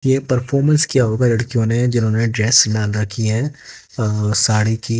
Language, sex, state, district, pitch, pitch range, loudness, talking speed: Hindi, male, Haryana, Jhajjar, 115 Hz, 110-130 Hz, -17 LUFS, 170 wpm